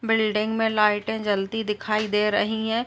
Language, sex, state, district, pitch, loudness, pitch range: Hindi, female, Uttar Pradesh, Gorakhpur, 215 Hz, -23 LUFS, 210-220 Hz